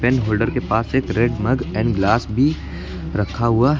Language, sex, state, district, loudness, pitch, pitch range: Hindi, male, Uttar Pradesh, Lucknow, -19 LUFS, 115 Hz, 110-130 Hz